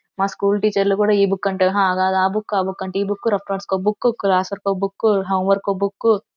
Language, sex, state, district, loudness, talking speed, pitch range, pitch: Telugu, female, Andhra Pradesh, Anantapur, -19 LUFS, 275 wpm, 195-205 Hz, 195 Hz